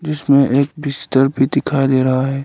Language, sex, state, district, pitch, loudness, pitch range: Hindi, male, Arunachal Pradesh, Lower Dibang Valley, 135 Hz, -15 LUFS, 135-140 Hz